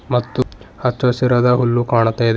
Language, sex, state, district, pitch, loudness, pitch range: Kannada, male, Karnataka, Bidar, 120 Hz, -17 LUFS, 115-125 Hz